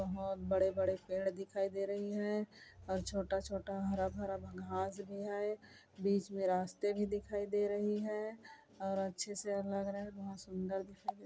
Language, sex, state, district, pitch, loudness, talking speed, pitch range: Hindi, female, Chhattisgarh, Kabirdham, 195 Hz, -39 LUFS, 170 wpm, 190-205 Hz